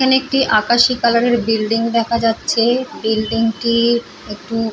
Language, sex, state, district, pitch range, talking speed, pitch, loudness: Bengali, female, West Bengal, Paschim Medinipur, 225-240 Hz, 140 wpm, 230 Hz, -16 LUFS